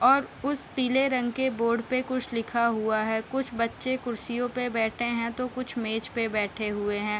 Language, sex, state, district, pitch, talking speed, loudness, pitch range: Hindi, female, Bihar, Darbhanga, 235 Hz, 200 wpm, -28 LUFS, 225-255 Hz